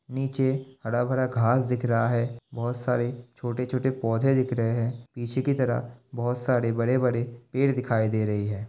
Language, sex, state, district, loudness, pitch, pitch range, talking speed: Hindi, male, Bihar, Kishanganj, -26 LUFS, 120 Hz, 120-130 Hz, 185 wpm